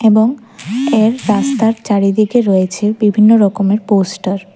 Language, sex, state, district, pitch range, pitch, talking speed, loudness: Bengali, female, Tripura, West Tripura, 200-225 Hz, 210 Hz, 120 wpm, -13 LUFS